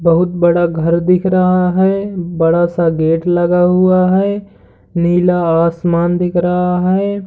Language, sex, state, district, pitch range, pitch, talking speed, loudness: Hindi, male, Uttar Pradesh, Hamirpur, 170-185 Hz, 175 Hz, 140 wpm, -13 LUFS